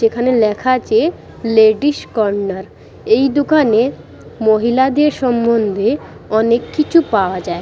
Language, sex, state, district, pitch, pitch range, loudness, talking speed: Bengali, female, West Bengal, Purulia, 230 Hz, 215-265 Hz, -15 LUFS, 120 wpm